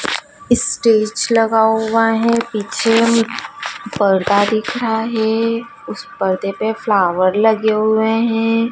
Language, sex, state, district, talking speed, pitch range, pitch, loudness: Hindi, female, Madhya Pradesh, Dhar, 115 wpm, 215-230 Hz, 225 Hz, -16 LUFS